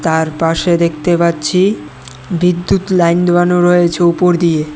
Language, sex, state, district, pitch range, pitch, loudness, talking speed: Bengali, male, Tripura, West Tripura, 165-180 Hz, 175 Hz, -13 LUFS, 125 wpm